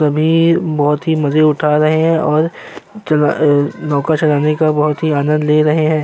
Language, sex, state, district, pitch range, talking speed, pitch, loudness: Hindi, male, Uttar Pradesh, Jyotiba Phule Nagar, 150-155 Hz, 170 wpm, 155 Hz, -14 LUFS